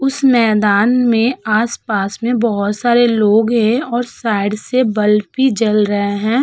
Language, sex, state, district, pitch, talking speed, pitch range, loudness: Hindi, female, Uttar Pradesh, Budaun, 225 Hz, 160 wpm, 210-240 Hz, -14 LUFS